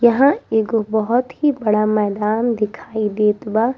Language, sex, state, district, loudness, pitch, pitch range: Bhojpuri, female, Bihar, East Champaran, -18 LUFS, 220 Hz, 210-240 Hz